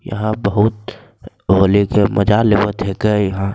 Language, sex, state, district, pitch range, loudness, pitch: Angika, male, Bihar, Begusarai, 100-105 Hz, -15 LUFS, 100 Hz